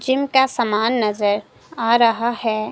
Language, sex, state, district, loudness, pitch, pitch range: Hindi, female, Himachal Pradesh, Shimla, -18 LUFS, 235 Hz, 215-250 Hz